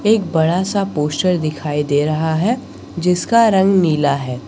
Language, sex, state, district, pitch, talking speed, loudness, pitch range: Hindi, male, Jharkhand, Garhwa, 165 Hz, 160 wpm, -16 LUFS, 150-190 Hz